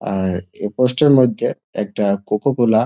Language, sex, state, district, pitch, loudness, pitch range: Bengali, male, West Bengal, Jalpaiguri, 110 Hz, -18 LUFS, 100-125 Hz